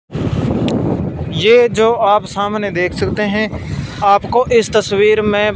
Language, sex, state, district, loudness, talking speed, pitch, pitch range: Hindi, male, Punjab, Fazilka, -14 LUFS, 120 wpm, 210 Hz, 200-215 Hz